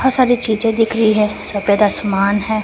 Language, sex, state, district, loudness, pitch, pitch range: Hindi, female, Chhattisgarh, Raipur, -15 LUFS, 215 Hz, 205-225 Hz